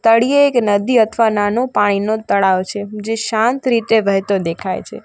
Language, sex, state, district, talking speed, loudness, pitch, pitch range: Gujarati, female, Gujarat, Valsad, 165 wpm, -16 LUFS, 220 Hz, 200-230 Hz